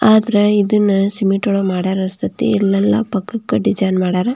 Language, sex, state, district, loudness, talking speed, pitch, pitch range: Kannada, female, Karnataka, Belgaum, -16 LUFS, 140 wpm, 200 Hz, 190-210 Hz